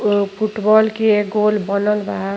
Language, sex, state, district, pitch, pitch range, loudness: Bhojpuri, female, Uttar Pradesh, Gorakhpur, 210 Hz, 205-215 Hz, -17 LUFS